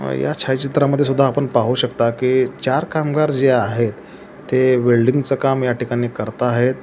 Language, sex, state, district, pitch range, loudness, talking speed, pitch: Marathi, male, Maharashtra, Solapur, 120-135 Hz, -17 LUFS, 185 wpm, 130 Hz